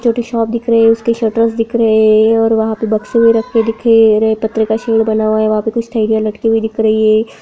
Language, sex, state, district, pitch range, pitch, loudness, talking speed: Hindi, female, Bihar, Gaya, 220-230 Hz, 225 Hz, -12 LUFS, 265 wpm